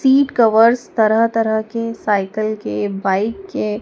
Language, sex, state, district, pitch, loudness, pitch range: Hindi, female, Madhya Pradesh, Dhar, 220 Hz, -17 LUFS, 210-230 Hz